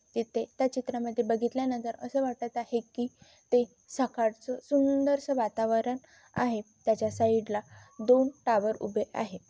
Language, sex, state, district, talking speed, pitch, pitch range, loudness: Marathi, female, Maharashtra, Chandrapur, 125 wpm, 240 Hz, 225-260 Hz, -30 LUFS